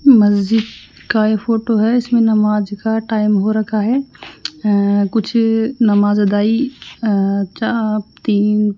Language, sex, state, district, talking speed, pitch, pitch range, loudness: Hindi, female, Rajasthan, Jaipur, 135 wpm, 215 Hz, 205-225 Hz, -16 LUFS